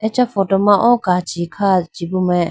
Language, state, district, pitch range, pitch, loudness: Idu Mishmi, Arunachal Pradesh, Lower Dibang Valley, 180-205 Hz, 195 Hz, -16 LUFS